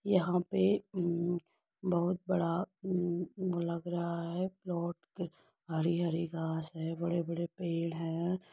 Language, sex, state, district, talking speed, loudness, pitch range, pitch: Hindi, female, Uttar Pradesh, Etah, 120 wpm, -35 LUFS, 170-185 Hz, 175 Hz